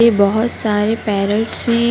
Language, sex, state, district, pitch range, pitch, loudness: Hindi, female, Bihar, Jahanabad, 205-235 Hz, 220 Hz, -15 LUFS